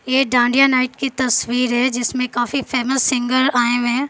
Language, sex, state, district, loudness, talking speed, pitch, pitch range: Hindi, female, Bihar, Patna, -17 LUFS, 190 wpm, 255 Hz, 245-265 Hz